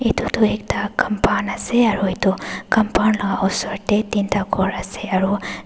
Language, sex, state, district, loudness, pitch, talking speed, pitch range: Nagamese, female, Nagaland, Dimapur, -20 LUFS, 205 Hz, 160 wpm, 190-215 Hz